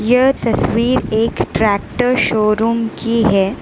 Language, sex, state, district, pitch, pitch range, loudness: Hindi, female, Gujarat, Valsad, 225 Hz, 215-245 Hz, -15 LUFS